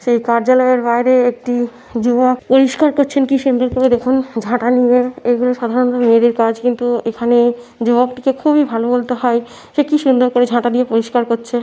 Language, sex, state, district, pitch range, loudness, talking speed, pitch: Bengali, female, West Bengal, Kolkata, 240-255 Hz, -14 LUFS, 165 wpm, 245 Hz